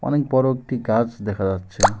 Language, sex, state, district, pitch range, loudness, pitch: Bengali, male, West Bengal, Alipurduar, 105-130 Hz, -21 LUFS, 115 Hz